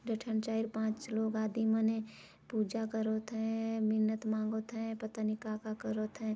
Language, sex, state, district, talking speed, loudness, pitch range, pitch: Chhattisgarhi, female, Chhattisgarh, Jashpur, 170 wpm, -36 LUFS, 220-225 Hz, 220 Hz